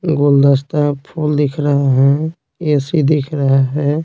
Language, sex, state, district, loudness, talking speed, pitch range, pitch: Hindi, male, Bihar, Patna, -15 LUFS, 135 wpm, 140-150 Hz, 145 Hz